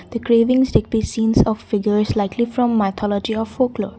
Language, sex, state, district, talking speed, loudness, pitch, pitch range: English, female, Assam, Kamrup Metropolitan, 180 wpm, -18 LUFS, 225 Hz, 210-235 Hz